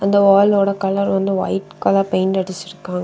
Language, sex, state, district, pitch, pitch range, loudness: Tamil, female, Tamil Nadu, Kanyakumari, 195 Hz, 185-195 Hz, -17 LUFS